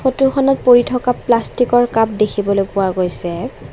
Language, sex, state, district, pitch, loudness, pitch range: Assamese, female, Assam, Kamrup Metropolitan, 235 Hz, -15 LUFS, 200-250 Hz